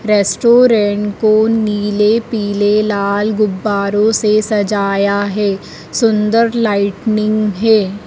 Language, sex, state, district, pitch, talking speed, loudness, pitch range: Hindi, female, Madhya Pradesh, Dhar, 210 Hz, 90 wpm, -14 LUFS, 205-220 Hz